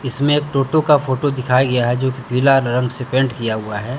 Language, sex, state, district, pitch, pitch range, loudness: Hindi, male, Jharkhand, Deoghar, 130 Hz, 125-135 Hz, -17 LUFS